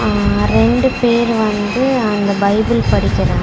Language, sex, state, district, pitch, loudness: Tamil, female, Tamil Nadu, Chennai, 205 Hz, -14 LUFS